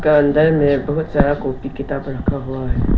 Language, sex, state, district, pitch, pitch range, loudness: Hindi, male, Arunachal Pradesh, Lower Dibang Valley, 140 Hz, 135-150 Hz, -18 LUFS